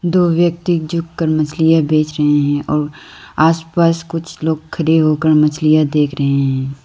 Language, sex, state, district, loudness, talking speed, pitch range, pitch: Hindi, female, Arunachal Pradesh, Lower Dibang Valley, -15 LUFS, 160 wpm, 150-165 Hz, 155 Hz